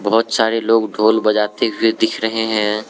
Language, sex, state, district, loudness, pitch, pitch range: Hindi, male, Arunachal Pradesh, Lower Dibang Valley, -16 LUFS, 110 Hz, 105-110 Hz